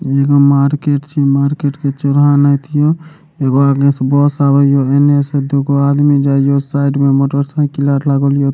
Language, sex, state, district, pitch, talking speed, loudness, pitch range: Maithili, male, Bihar, Supaul, 140 Hz, 175 wpm, -12 LUFS, 140-145 Hz